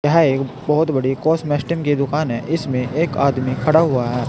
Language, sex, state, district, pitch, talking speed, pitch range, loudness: Hindi, male, Uttar Pradesh, Saharanpur, 140 Hz, 195 wpm, 130-155 Hz, -18 LUFS